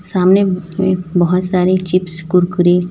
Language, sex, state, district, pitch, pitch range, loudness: Hindi, female, Chhattisgarh, Raipur, 180 Hz, 180-185 Hz, -14 LUFS